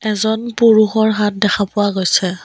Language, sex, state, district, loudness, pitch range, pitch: Assamese, female, Assam, Kamrup Metropolitan, -15 LUFS, 200-220 Hz, 210 Hz